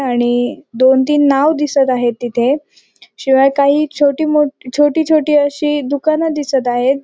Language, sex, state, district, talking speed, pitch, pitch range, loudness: Marathi, female, Maharashtra, Sindhudurg, 145 wpm, 285 Hz, 260-295 Hz, -14 LUFS